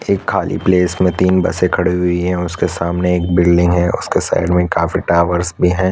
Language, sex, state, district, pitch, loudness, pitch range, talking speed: Hindi, male, Chhattisgarh, Korba, 90 Hz, -15 LUFS, 85-90 Hz, 210 wpm